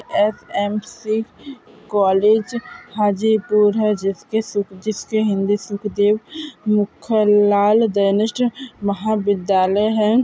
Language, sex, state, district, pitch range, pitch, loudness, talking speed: Hindi, female, Maharashtra, Sindhudurg, 205-220 Hz, 210 Hz, -18 LUFS, 70 wpm